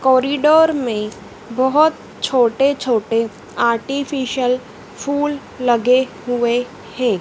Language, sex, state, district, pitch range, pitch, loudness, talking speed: Hindi, female, Madhya Pradesh, Dhar, 235-275 Hz, 255 Hz, -17 LUFS, 85 wpm